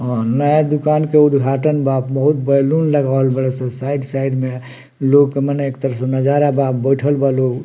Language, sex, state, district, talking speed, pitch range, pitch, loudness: Bhojpuri, male, Bihar, Muzaffarpur, 190 wpm, 130-145 Hz, 135 Hz, -16 LUFS